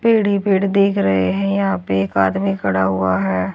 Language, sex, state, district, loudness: Hindi, female, Haryana, Charkhi Dadri, -17 LUFS